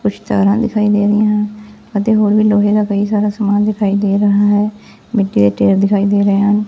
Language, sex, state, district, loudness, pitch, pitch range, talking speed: Punjabi, female, Punjab, Fazilka, -14 LUFS, 205 Hz, 200-210 Hz, 225 wpm